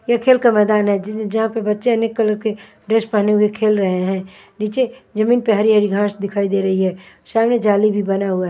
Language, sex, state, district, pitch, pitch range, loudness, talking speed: Hindi, female, Maharashtra, Mumbai Suburban, 210 Hz, 200-225 Hz, -17 LUFS, 225 wpm